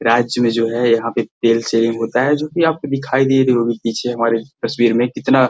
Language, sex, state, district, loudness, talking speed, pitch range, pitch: Hindi, male, Bihar, Gaya, -17 LUFS, 250 wpm, 115-135 Hz, 120 Hz